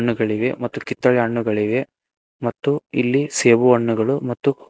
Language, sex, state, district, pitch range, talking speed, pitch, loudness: Kannada, male, Karnataka, Koppal, 115-135 Hz, 115 wpm, 120 Hz, -19 LUFS